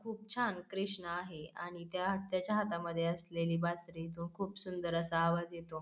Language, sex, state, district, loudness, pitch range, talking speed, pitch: Marathi, female, Maharashtra, Pune, -38 LUFS, 170-195 Hz, 165 wpm, 175 Hz